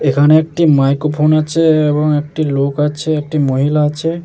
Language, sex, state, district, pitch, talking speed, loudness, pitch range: Bengali, male, West Bengal, Jalpaiguri, 150 Hz, 155 wpm, -13 LUFS, 145-155 Hz